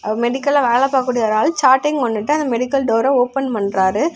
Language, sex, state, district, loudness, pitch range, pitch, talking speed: Tamil, female, Tamil Nadu, Kanyakumari, -16 LUFS, 225-280 Hz, 255 Hz, 170 wpm